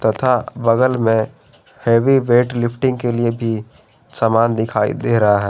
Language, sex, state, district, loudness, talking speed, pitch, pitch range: Hindi, male, Jharkhand, Garhwa, -17 LUFS, 155 wpm, 115 Hz, 115-125 Hz